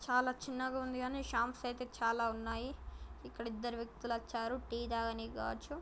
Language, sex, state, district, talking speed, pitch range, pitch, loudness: Telugu, female, Telangana, Karimnagar, 145 wpm, 230-255 Hz, 240 Hz, -39 LUFS